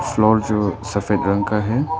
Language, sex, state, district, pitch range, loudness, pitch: Hindi, male, Arunachal Pradesh, Papum Pare, 100-110 Hz, -19 LUFS, 105 Hz